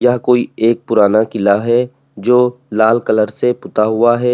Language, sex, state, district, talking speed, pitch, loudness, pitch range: Hindi, male, Uttar Pradesh, Lalitpur, 180 wpm, 120 Hz, -14 LUFS, 110-125 Hz